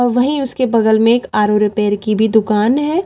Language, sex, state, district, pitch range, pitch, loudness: Hindi, female, Delhi, New Delhi, 210-255 Hz, 225 Hz, -14 LUFS